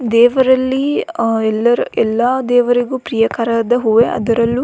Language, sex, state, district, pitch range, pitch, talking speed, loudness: Kannada, female, Karnataka, Belgaum, 230-255 Hz, 240 Hz, 115 wpm, -14 LUFS